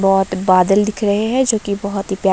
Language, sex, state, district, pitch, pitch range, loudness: Hindi, female, Himachal Pradesh, Shimla, 200 Hz, 195-210 Hz, -16 LUFS